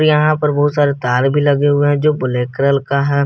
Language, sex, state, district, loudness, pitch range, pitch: Hindi, male, Jharkhand, Garhwa, -15 LUFS, 140-145 Hz, 145 Hz